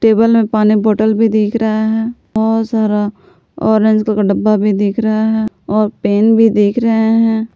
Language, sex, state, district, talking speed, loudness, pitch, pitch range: Hindi, female, Jharkhand, Palamu, 190 wpm, -13 LUFS, 220 Hz, 215-225 Hz